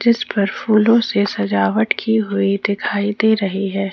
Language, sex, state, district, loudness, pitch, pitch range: Hindi, female, Jharkhand, Ranchi, -17 LUFS, 205 Hz, 195-220 Hz